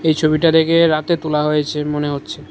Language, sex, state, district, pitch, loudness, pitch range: Bengali, male, Tripura, West Tripura, 155 Hz, -16 LUFS, 150-160 Hz